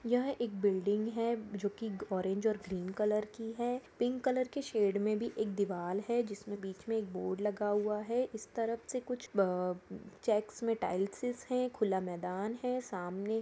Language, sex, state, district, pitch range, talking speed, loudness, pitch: Hindi, female, Jharkhand, Jamtara, 200-235 Hz, 185 wpm, -36 LUFS, 215 Hz